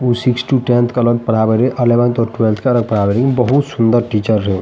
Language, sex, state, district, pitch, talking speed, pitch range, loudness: Maithili, male, Bihar, Madhepura, 120 Hz, 245 wpm, 110-125 Hz, -14 LUFS